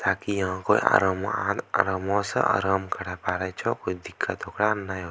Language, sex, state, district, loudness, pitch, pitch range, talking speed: Angika, male, Bihar, Bhagalpur, -26 LUFS, 95 Hz, 95-100 Hz, 185 wpm